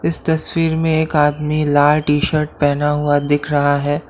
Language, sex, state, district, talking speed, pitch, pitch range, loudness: Hindi, male, Assam, Kamrup Metropolitan, 190 wpm, 150 Hz, 145-155 Hz, -16 LUFS